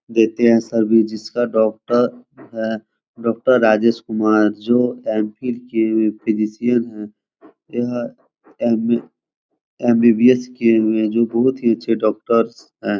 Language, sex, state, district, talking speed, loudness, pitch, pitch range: Hindi, male, Bihar, Jahanabad, 120 wpm, -18 LUFS, 115 Hz, 110-120 Hz